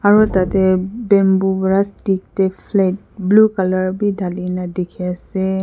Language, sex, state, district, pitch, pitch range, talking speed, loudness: Nagamese, female, Nagaland, Kohima, 190 Hz, 185-200 Hz, 140 wpm, -17 LUFS